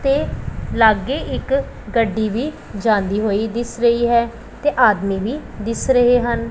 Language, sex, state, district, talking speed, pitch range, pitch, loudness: Punjabi, female, Punjab, Pathankot, 145 wpm, 215-245 Hz, 235 Hz, -18 LUFS